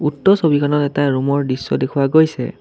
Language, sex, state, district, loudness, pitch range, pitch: Assamese, male, Assam, Kamrup Metropolitan, -16 LUFS, 135-155 Hz, 145 Hz